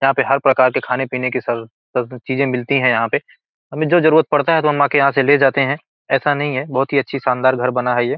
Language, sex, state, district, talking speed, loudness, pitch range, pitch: Hindi, male, Bihar, Gopalganj, 270 wpm, -17 LUFS, 125-145 Hz, 135 Hz